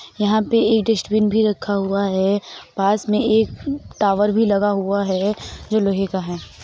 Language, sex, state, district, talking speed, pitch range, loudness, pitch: Hindi, female, Uttar Pradesh, Jalaun, 180 wpm, 195-220 Hz, -19 LUFS, 205 Hz